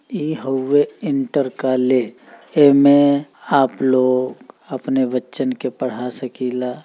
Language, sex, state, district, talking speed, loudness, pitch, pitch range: Bhojpuri, male, Uttar Pradesh, Deoria, 105 wpm, -18 LUFS, 130 Hz, 130-140 Hz